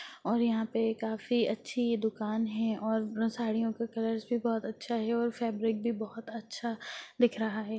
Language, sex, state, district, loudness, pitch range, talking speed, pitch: Hindi, female, Bihar, Jahanabad, -32 LUFS, 220-235 Hz, 175 wpm, 225 Hz